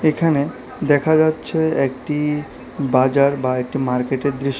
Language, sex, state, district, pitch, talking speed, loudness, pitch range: Bengali, male, Tripura, South Tripura, 140 Hz, 115 wpm, -19 LUFS, 130-155 Hz